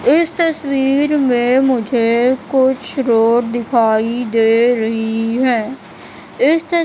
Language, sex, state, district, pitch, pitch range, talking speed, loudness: Hindi, female, Madhya Pradesh, Katni, 245 Hz, 230-270 Hz, 105 wpm, -15 LUFS